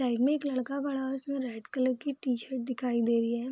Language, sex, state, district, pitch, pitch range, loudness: Hindi, female, Bihar, Saharsa, 255 Hz, 240-275 Hz, -31 LUFS